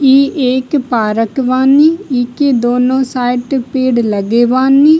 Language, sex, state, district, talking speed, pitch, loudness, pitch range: Bhojpuri, female, Bihar, East Champaran, 120 wpm, 255 Hz, -12 LUFS, 245-270 Hz